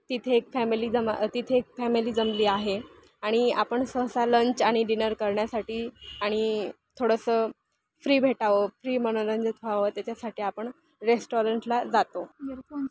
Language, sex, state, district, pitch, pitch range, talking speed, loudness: Marathi, female, Maharashtra, Aurangabad, 230 Hz, 215-250 Hz, 130 wpm, -27 LUFS